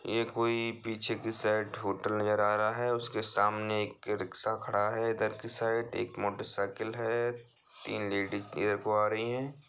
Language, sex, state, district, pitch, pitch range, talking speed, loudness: Hindi, male, Bihar, Bhagalpur, 110 Hz, 105-115 Hz, 185 wpm, -32 LUFS